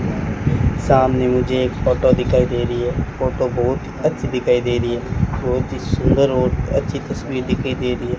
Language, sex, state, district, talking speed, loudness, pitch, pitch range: Hindi, male, Rajasthan, Bikaner, 185 wpm, -19 LUFS, 125 Hz, 120-130 Hz